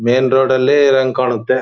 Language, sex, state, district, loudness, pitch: Kannada, male, Karnataka, Shimoga, -13 LUFS, 130 Hz